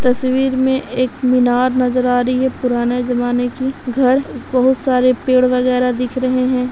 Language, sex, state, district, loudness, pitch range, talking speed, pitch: Hindi, female, Bihar, Begusarai, -16 LUFS, 250-260 Hz, 170 wpm, 255 Hz